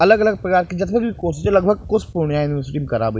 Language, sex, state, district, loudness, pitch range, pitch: Maithili, male, Bihar, Purnia, -19 LUFS, 150-210 Hz, 180 Hz